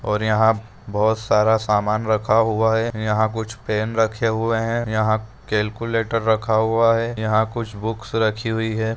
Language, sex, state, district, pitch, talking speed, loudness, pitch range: Hindi, male, Rajasthan, Churu, 110 Hz, 165 wpm, -20 LUFS, 110-115 Hz